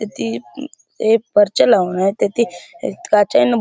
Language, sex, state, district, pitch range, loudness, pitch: Marathi, male, Maharashtra, Chandrapur, 190-240 Hz, -17 LUFS, 215 Hz